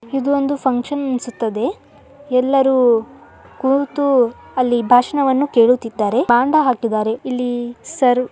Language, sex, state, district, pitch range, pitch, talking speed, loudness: Kannada, male, Karnataka, Dharwad, 240-275 Hz, 255 Hz, 100 wpm, -17 LUFS